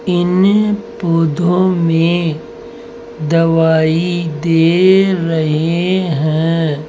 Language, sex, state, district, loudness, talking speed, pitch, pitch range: Hindi, male, Rajasthan, Jaipur, -13 LUFS, 60 wpm, 170 Hz, 160-185 Hz